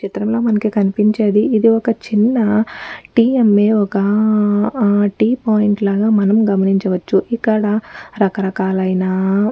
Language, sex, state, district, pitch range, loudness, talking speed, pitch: Telugu, female, Telangana, Nalgonda, 200-220 Hz, -15 LUFS, 95 wpm, 210 Hz